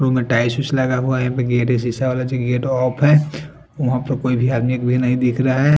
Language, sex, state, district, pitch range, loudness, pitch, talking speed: Hindi, male, Punjab, Fazilka, 125-135 Hz, -18 LUFS, 130 Hz, 270 wpm